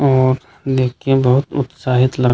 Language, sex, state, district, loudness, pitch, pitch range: Hindi, male, Bihar, Kishanganj, -16 LUFS, 130 Hz, 125-135 Hz